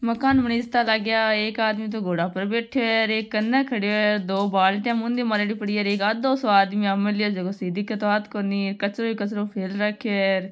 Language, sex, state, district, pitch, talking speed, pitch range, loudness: Marwari, female, Rajasthan, Nagaur, 210 Hz, 235 wpm, 200-225 Hz, -23 LUFS